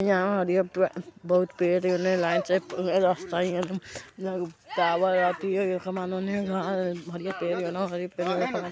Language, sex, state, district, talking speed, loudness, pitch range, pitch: Hindi, male, Bihar, Vaishali, 110 wpm, -27 LUFS, 175-190 Hz, 180 Hz